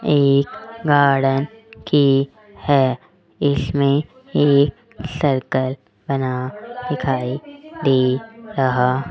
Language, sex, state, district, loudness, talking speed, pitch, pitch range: Hindi, female, Rajasthan, Jaipur, -19 LUFS, 80 wpm, 140 Hz, 130-170 Hz